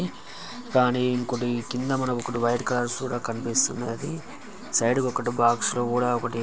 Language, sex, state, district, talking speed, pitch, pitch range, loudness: Telugu, male, Telangana, Karimnagar, 150 wpm, 120 Hz, 120-125 Hz, -25 LUFS